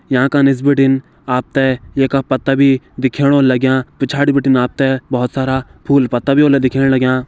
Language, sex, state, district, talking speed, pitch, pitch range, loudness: Garhwali, male, Uttarakhand, Tehri Garhwal, 205 wpm, 135 Hz, 130-140 Hz, -14 LUFS